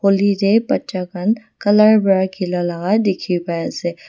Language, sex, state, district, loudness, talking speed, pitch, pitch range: Nagamese, female, Nagaland, Dimapur, -17 LUFS, 145 wpm, 195 Hz, 180-210 Hz